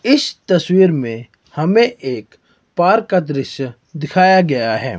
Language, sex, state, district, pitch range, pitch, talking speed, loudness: Hindi, male, Himachal Pradesh, Shimla, 135-190 Hz, 155 Hz, 130 wpm, -15 LUFS